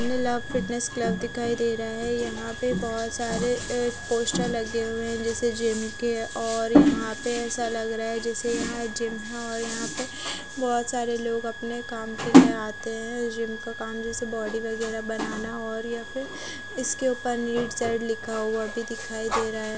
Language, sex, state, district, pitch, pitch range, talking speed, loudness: Hindi, female, Punjab, Kapurthala, 235 Hz, 230-240 Hz, 190 wpm, -27 LUFS